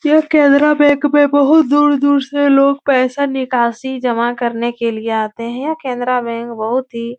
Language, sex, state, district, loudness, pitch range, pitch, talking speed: Hindi, female, Uttar Pradesh, Etah, -14 LUFS, 235-285 Hz, 260 Hz, 175 wpm